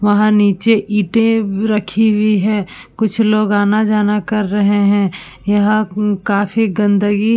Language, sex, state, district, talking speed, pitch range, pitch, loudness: Hindi, female, Uttar Pradesh, Budaun, 145 wpm, 205-215 Hz, 210 Hz, -14 LUFS